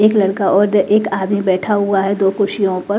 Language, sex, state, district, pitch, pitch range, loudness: Hindi, female, Bihar, West Champaran, 200 Hz, 195-205 Hz, -15 LUFS